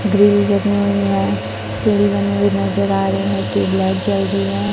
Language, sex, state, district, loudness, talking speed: Hindi, male, Chhattisgarh, Raipur, -17 LUFS, 205 wpm